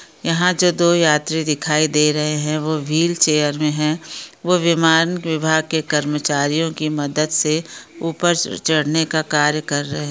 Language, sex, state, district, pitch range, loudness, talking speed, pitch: Hindi, female, Bihar, Gaya, 150-165 Hz, -18 LUFS, 160 wpm, 155 Hz